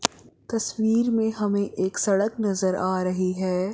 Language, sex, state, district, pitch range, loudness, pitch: Hindi, female, Chandigarh, Chandigarh, 185-220 Hz, -24 LUFS, 200 Hz